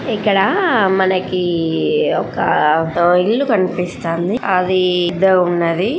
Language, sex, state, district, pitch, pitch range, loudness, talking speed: Telugu, female, Andhra Pradesh, Srikakulam, 185 Hz, 175-195 Hz, -15 LUFS, 80 wpm